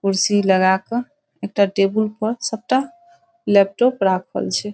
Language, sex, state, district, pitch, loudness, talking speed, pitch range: Maithili, female, Bihar, Saharsa, 210 Hz, -19 LUFS, 125 wpm, 195-245 Hz